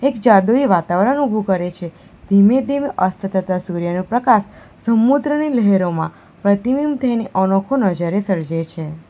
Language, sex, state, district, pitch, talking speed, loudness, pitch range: Gujarati, female, Gujarat, Valsad, 200 Hz, 125 wpm, -17 LUFS, 180-250 Hz